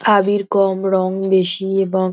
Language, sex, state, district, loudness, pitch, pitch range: Bengali, female, West Bengal, North 24 Parganas, -17 LUFS, 195 Hz, 190-195 Hz